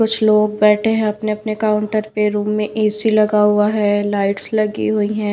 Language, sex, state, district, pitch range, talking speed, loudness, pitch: Hindi, female, Haryana, Rohtak, 210-215 Hz, 190 wpm, -17 LUFS, 210 Hz